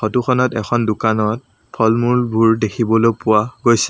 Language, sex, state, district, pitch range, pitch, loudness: Assamese, male, Assam, Sonitpur, 110-120 Hz, 115 Hz, -16 LUFS